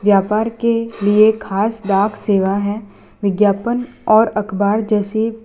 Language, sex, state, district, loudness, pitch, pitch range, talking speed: Hindi, female, Gujarat, Valsad, -16 LUFS, 210 Hz, 200-220 Hz, 130 wpm